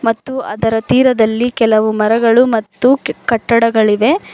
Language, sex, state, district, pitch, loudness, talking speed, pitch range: Kannada, female, Karnataka, Bangalore, 230 Hz, -13 LUFS, 95 wpm, 220-245 Hz